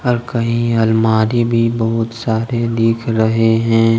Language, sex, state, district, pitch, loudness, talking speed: Hindi, male, Jharkhand, Deoghar, 115 Hz, -15 LUFS, 135 wpm